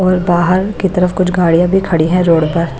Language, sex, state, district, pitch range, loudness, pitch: Hindi, female, Chhattisgarh, Raipur, 170-185 Hz, -13 LUFS, 180 Hz